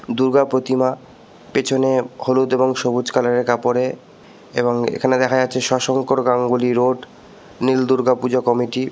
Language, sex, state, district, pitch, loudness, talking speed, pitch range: Bengali, male, West Bengal, Purulia, 130 Hz, -18 LUFS, 155 wpm, 125-130 Hz